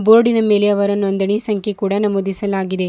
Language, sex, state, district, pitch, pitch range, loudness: Kannada, female, Karnataka, Bidar, 205 Hz, 195-210 Hz, -16 LUFS